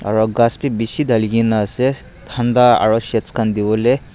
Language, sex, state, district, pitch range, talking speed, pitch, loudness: Nagamese, male, Nagaland, Dimapur, 110-120 Hz, 190 wpm, 115 Hz, -16 LUFS